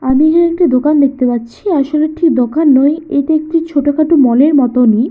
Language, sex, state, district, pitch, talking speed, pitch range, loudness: Bengali, female, West Bengal, Jalpaiguri, 290 Hz, 210 wpm, 260-315 Hz, -11 LUFS